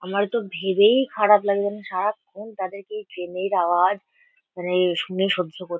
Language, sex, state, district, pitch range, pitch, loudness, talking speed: Bengali, female, West Bengal, Kolkata, 180-210 Hz, 200 Hz, -22 LUFS, 175 wpm